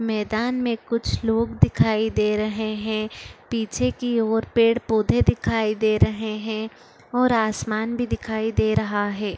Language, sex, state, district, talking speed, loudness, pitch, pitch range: Chhattisgarhi, female, Chhattisgarh, Korba, 160 wpm, -23 LUFS, 220 Hz, 215-230 Hz